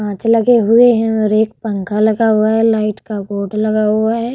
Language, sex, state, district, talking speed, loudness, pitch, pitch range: Hindi, female, Uttar Pradesh, Budaun, 220 wpm, -14 LUFS, 220 Hz, 215-225 Hz